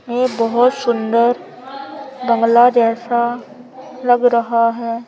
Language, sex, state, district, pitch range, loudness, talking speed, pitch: Hindi, female, Madhya Pradesh, Umaria, 235-250 Hz, -15 LUFS, 95 wpm, 240 Hz